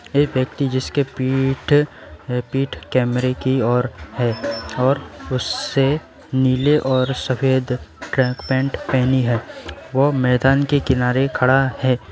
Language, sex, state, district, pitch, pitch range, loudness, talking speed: Hindi, male, West Bengal, Alipurduar, 130 Hz, 125-135 Hz, -19 LUFS, 125 wpm